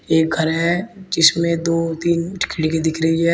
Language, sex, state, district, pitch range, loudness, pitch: Hindi, male, Uttar Pradesh, Shamli, 160-170 Hz, -18 LUFS, 165 Hz